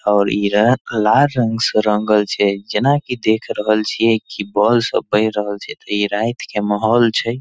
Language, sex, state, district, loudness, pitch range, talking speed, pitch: Maithili, male, Bihar, Darbhanga, -17 LUFS, 105-115 Hz, 195 wpm, 110 Hz